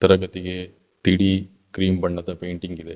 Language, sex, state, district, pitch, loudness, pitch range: Kannada, male, Karnataka, Bangalore, 95 Hz, -23 LUFS, 90-95 Hz